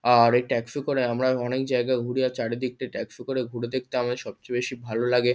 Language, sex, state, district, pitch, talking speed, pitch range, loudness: Bengali, male, West Bengal, Kolkata, 125 Hz, 200 wpm, 120-130 Hz, -26 LUFS